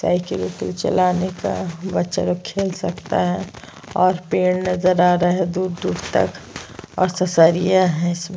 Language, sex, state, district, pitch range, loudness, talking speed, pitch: Hindi, female, Chhattisgarh, Sukma, 175-185 Hz, -19 LUFS, 150 wpm, 180 Hz